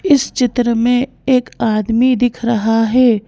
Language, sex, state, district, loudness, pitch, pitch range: Hindi, female, Madhya Pradesh, Bhopal, -15 LUFS, 245 Hz, 225-255 Hz